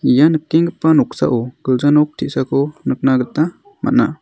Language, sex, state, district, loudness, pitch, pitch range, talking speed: Garo, male, Meghalaya, South Garo Hills, -16 LUFS, 150 Hz, 130-165 Hz, 130 wpm